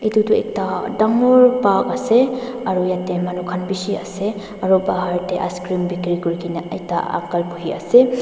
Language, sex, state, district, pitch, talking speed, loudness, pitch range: Nagamese, female, Nagaland, Dimapur, 185 Hz, 160 wpm, -19 LUFS, 180-225 Hz